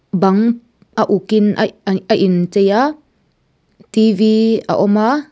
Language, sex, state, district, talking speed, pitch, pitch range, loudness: Mizo, female, Mizoram, Aizawl, 135 wpm, 210 Hz, 195-220 Hz, -15 LUFS